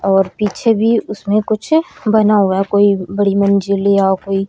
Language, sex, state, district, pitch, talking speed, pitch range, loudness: Hindi, female, Haryana, Rohtak, 200 Hz, 160 wpm, 195-215 Hz, -14 LUFS